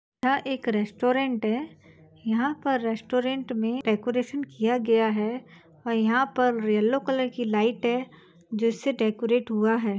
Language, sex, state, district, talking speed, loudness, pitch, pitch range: Hindi, female, Chhattisgarh, Bastar, 150 wpm, -26 LUFS, 235 Hz, 220-255 Hz